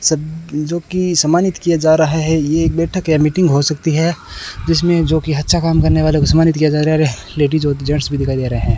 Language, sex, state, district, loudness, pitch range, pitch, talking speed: Hindi, male, Rajasthan, Bikaner, -15 LUFS, 150-165 Hz, 155 Hz, 240 wpm